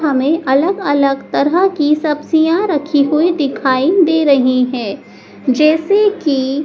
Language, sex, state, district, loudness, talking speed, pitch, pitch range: Hindi, male, Madhya Pradesh, Dhar, -14 LUFS, 125 wpm, 295 Hz, 275-325 Hz